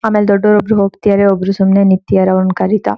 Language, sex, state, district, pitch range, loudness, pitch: Kannada, female, Karnataka, Shimoga, 190-205 Hz, -12 LUFS, 200 Hz